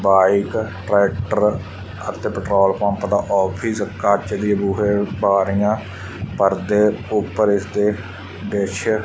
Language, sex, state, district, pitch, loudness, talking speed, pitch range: Punjabi, male, Punjab, Fazilka, 100 Hz, -19 LUFS, 115 wpm, 95-105 Hz